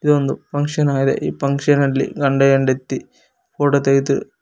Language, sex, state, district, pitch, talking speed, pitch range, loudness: Kannada, male, Karnataka, Koppal, 140 Hz, 120 wpm, 135-145 Hz, -18 LUFS